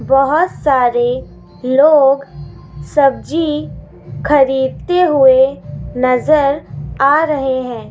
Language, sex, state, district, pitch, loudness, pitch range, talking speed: Hindi, female, Rajasthan, Jaipur, 270 Hz, -13 LUFS, 255-295 Hz, 75 wpm